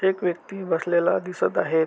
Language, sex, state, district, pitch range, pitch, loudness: Marathi, male, Maharashtra, Aurangabad, 165-190 Hz, 175 Hz, -24 LUFS